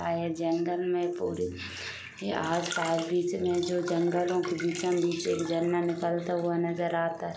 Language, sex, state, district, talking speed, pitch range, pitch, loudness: Hindi, female, Jharkhand, Sahebganj, 170 wpm, 165-175 Hz, 170 Hz, -30 LUFS